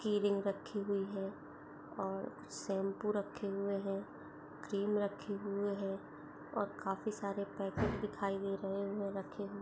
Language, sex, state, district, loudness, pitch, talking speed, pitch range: Hindi, female, Chhattisgarh, Bastar, -39 LUFS, 200 Hz, 130 wpm, 195-200 Hz